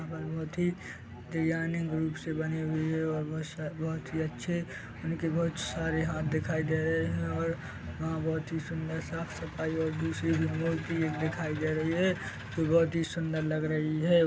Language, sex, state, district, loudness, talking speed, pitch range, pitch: Hindi, male, Chhattisgarh, Bilaspur, -32 LUFS, 175 wpm, 155-165 Hz, 160 Hz